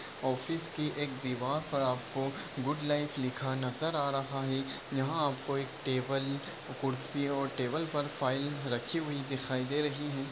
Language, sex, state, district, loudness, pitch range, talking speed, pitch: Hindi, male, Maharashtra, Solapur, -34 LUFS, 130-145 Hz, 165 wpm, 140 Hz